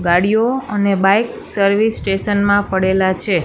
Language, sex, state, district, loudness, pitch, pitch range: Gujarati, female, Gujarat, Gandhinagar, -16 LUFS, 200 Hz, 190-210 Hz